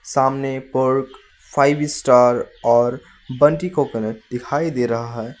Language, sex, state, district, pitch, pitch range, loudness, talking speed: Hindi, male, West Bengal, Alipurduar, 130 Hz, 120-140 Hz, -19 LUFS, 120 wpm